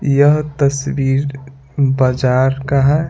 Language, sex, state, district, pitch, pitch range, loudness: Hindi, male, Bihar, Patna, 140 Hz, 135-145 Hz, -15 LUFS